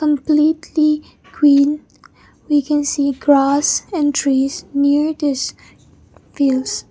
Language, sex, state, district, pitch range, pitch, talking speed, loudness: English, female, Mizoram, Aizawl, 280-300 Hz, 290 Hz, 95 wpm, -16 LUFS